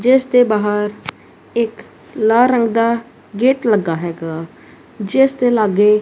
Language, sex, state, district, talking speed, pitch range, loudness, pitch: Punjabi, female, Punjab, Kapurthala, 120 wpm, 210-245 Hz, -16 LUFS, 225 Hz